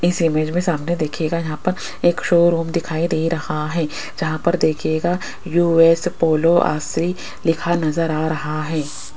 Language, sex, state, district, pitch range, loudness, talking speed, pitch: Hindi, female, Rajasthan, Jaipur, 155-175 Hz, -19 LUFS, 155 wpm, 165 Hz